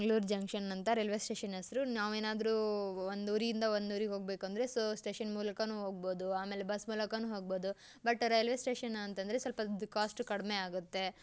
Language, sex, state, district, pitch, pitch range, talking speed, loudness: Kannada, female, Karnataka, Dakshina Kannada, 210 Hz, 200-225 Hz, 150 wpm, -37 LUFS